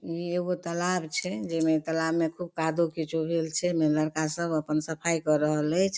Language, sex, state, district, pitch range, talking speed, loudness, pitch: Maithili, female, Bihar, Darbhanga, 155-170 Hz, 180 wpm, -28 LUFS, 160 Hz